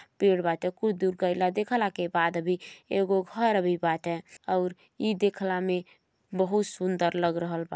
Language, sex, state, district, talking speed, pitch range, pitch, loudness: Bhojpuri, female, Uttar Pradesh, Gorakhpur, 160 wpm, 175-195 Hz, 185 Hz, -28 LUFS